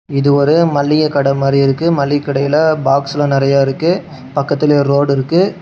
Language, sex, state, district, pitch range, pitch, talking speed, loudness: Tamil, male, Tamil Nadu, Namakkal, 140-155 Hz, 140 Hz, 130 wpm, -13 LUFS